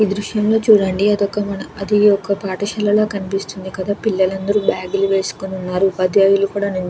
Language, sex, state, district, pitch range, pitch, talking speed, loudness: Telugu, female, Andhra Pradesh, Krishna, 190-205 Hz, 200 Hz, 155 wpm, -17 LUFS